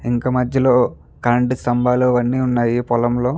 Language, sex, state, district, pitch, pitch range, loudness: Telugu, male, Andhra Pradesh, Guntur, 125 Hz, 120-125 Hz, -17 LUFS